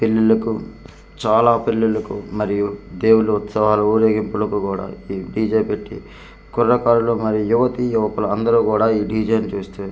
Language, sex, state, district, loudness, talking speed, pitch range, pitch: Telugu, male, Andhra Pradesh, Manyam, -18 LUFS, 125 wpm, 105-110 Hz, 110 Hz